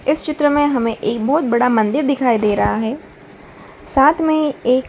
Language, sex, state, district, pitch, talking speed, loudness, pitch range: Hindi, female, Bihar, Saran, 265 Hz, 195 wpm, -16 LUFS, 235-295 Hz